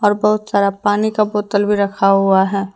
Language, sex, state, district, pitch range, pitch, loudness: Hindi, female, Jharkhand, Deoghar, 195-210 Hz, 205 Hz, -15 LUFS